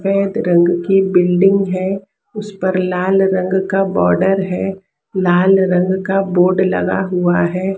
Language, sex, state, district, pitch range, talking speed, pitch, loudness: Hindi, female, Maharashtra, Mumbai Suburban, 180-195 Hz, 145 wpm, 190 Hz, -15 LUFS